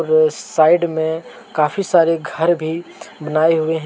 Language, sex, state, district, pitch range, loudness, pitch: Hindi, male, Jharkhand, Deoghar, 160-175 Hz, -17 LUFS, 165 Hz